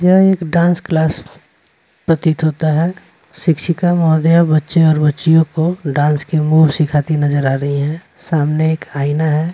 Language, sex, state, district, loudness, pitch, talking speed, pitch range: Hindi, male, Bihar, West Champaran, -14 LUFS, 160 Hz, 155 wpm, 150-165 Hz